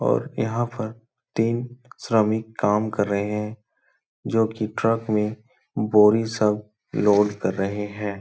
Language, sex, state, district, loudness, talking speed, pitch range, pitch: Hindi, male, Bihar, Jahanabad, -23 LUFS, 140 wpm, 105-115 Hz, 110 Hz